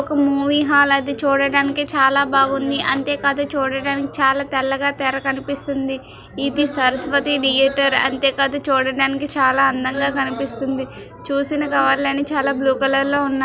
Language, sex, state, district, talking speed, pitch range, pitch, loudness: Telugu, female, Andhra Pradesh, Srikakulam, 125 wpm, 270-280 Hz, 275 Hz, -18 LUFS